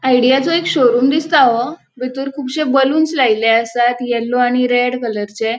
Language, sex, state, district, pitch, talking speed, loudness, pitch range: Konkani, female, Goa, North and South Goa, 250 Hz, 160 wpm, -15 LUFS, 240-275 Hz